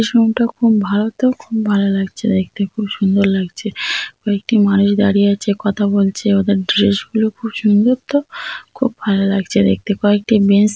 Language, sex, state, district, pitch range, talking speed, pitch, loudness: Bengali, female, West Bengal, North 24 Parganas, 200-225 Hz, 175 wpm, 205 Hz, -16 LUFS